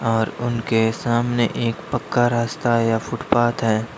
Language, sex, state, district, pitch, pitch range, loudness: Hindi, male, Uttar Pradesh, Lalitpur, 115 Hz, 115-120 Hz, -21 LUFS